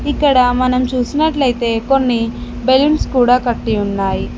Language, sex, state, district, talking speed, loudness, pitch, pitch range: Telugu, female, Telangana, Mahabubabad, 110 wpm, -15 LUFS, 250 Hz, 235-270 Hz